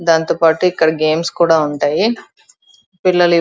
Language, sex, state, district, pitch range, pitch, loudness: Telugu, female, Andhra Pradesh, Chittoor, 160-180 Hz, 170 Hz, -14 LUFS